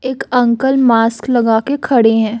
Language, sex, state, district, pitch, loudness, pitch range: Hindi, female, Chhattisgarh, Raipur, 240 Hz, -13 LUFS, 225-260 Hz